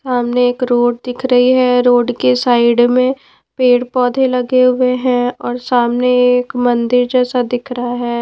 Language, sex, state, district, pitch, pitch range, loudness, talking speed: Hindi, female, Punjab, Pathankot, 250 Hz, 245-255 Hz, -13 LUFS, 160 wpm